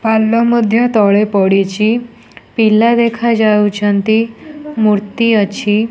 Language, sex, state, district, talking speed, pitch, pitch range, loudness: Odia, female, Odisha, Nuapada, 90 wpm, 220 Hz, 210-230 Hz, -12 LUFS